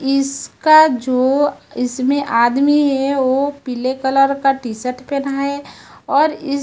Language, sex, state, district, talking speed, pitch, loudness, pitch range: Hindi, female, Chhattisgarh, Raipur, 135 wpm, 275 Hz, -16 LUFS, 255-285 Hz